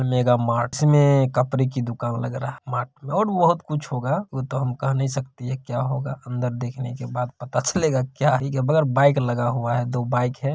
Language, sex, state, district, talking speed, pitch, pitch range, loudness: Hindi, male, Bihar, Saran, 210 wpm, 130 Hz, 125-140 Hz, -23 LUFS